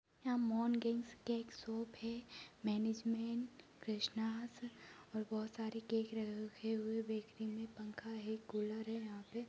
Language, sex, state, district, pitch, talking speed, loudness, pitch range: Hindi, female, Bihar, Jahanabad, 225 Hz, 140 wpm, -43 LUFS, 215-230 Hz